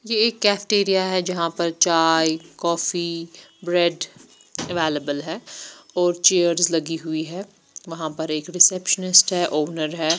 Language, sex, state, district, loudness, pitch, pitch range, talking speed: Hindi, female, Chandigarh, Chandigarh, -20 LUFS, 170 Hz, 160-185 Hz, 135 wpm